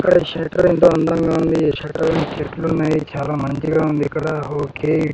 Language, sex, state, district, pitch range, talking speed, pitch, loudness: Telugu, male, Andhra Pradesh, Sri Satya Sai, 150-160 Hz, 165 wpm, 155 Hz, -18 LUFS